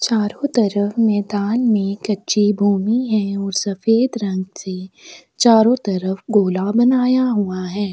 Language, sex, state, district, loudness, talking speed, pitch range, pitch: Hindi, female, Chhattisgarh, Sukma, -18 LUFS, 130 wpm, 195-230 Hz, 205 Hz